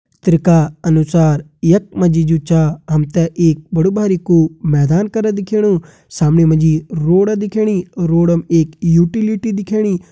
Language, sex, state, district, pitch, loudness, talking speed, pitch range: Hindi, male, Uttarakhand, Uttarkashi, 170 Hz, -14 LUFS, 150 wpm, 160-200 Hz